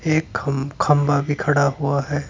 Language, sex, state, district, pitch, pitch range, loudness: Hindi, male, Uttar Pradesh, Saharanpur, 145 Hz, 140-150 Hz, -20 LUFS